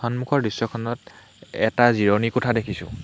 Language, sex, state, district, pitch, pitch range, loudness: Assamese, male, Assam, Hailakandi, 115 Hz, 110-120 Hz, -22 LUFS